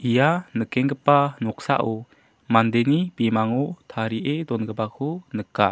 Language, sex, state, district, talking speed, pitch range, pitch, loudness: Garo, male, Meghalaya, South Garo Hills, 85 wpm, 110-145 Hz, 120 Hz, -23 LUFS